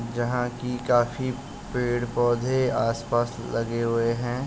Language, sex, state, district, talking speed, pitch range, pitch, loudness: Hindi, male, Uttar Pradesh, Jalaun, 105 wpm, 115-125 Hz, 120 Hz, -26 LUFS